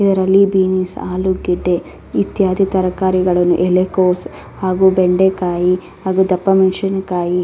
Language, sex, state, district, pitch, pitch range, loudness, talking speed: Kannada, female, Karnataka, Raichur, 185 Hz, 180-190 Hz, -15 LUFS, 95 wpm